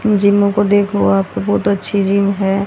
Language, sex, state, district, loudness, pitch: Hindi, female, Haryana, Rohtak, -14 LUFS, 200 Hz